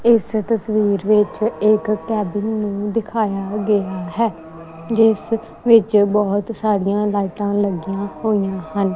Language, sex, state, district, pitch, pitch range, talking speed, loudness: Punjabi, female, Punjab, Kapurthala, 210 Hz, 200-220 Hz, 115 wpm, -19 LUFS